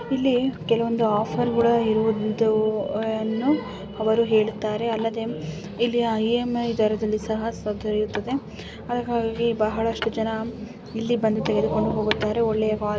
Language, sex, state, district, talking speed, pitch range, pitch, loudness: Kannada, female, Karnataka, Bijapur, 95 wpm, 215-235 Hz, 225 Hz, -24 LUFS